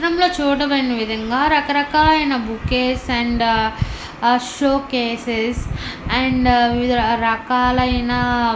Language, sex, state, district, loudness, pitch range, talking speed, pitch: Telugu, female, Andhra Pradesh, Anantapur, -18 LUFS, 235-275 Hz, 100 wpm, 250 Hz